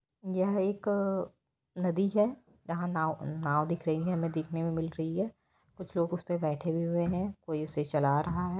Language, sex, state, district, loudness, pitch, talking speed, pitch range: Hindi, female, Bihar, Vaishali, -32 LUFS, 170 Hz, 195 wpm, 155-185 Hz